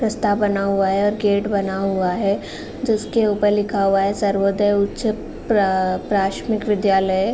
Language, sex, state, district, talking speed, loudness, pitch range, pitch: Hindi, female, Uttar Pradesh, Gorakhpur, 140 wpm, -19 LUFS, 195-210 Hz, 200 Hz